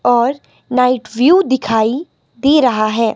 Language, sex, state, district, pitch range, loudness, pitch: Hindi, female, Himachal Pradesh, Shimla, 225-270 Hz, -14 LUFS, 250 Hz